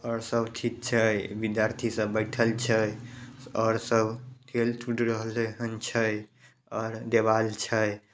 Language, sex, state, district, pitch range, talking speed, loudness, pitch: Maithili, male, Bihar, Samastipur, 110-120 Hz, 125 wpm, -28 LUFS, 115 Hz